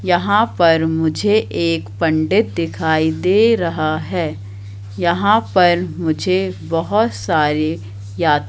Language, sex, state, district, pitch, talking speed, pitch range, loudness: Hindi, female, Madhya Pradesh, Katni, 165 Hz, 115 wpm, 150-185 Hz, -17 LUFS